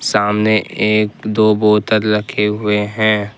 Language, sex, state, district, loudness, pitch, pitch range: Hindi, male, Jharkhand, Ranchi, -15 LUFS, 105 Hz, 105-110 Hz